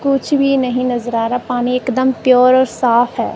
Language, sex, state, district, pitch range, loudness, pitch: Hindi, female, Punjab, Kapurthala, 245-260 Hz, -14 LUFS, 250 Hz